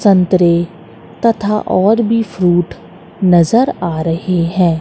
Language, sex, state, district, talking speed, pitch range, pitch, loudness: Hindi, female, Madhya Pradesh, Katni, 110 wpm, 170-210 Hz, 180 Hz, -13 LUFS